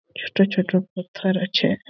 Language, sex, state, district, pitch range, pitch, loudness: Bengali, male, West Bengal, Malda, 185-195 Hz, 190 Hz, -22 LUFS